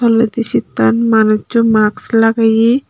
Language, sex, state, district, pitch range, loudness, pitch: Chakma, female, Tripura, Unakoti, 220-230 Hz, -13 LUFS, 225 Hz